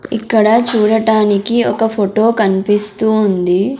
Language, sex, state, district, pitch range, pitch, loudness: Telugu, female, Andhra Pradesh, Sri Satya Sai, 205-225 Hz, 215 Hz, -13 LUFS